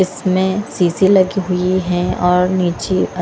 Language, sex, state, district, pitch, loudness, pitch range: Hindi, female, Punjab, Kapurthala, 185 Hz, -16 LUFS, 180-190 Hz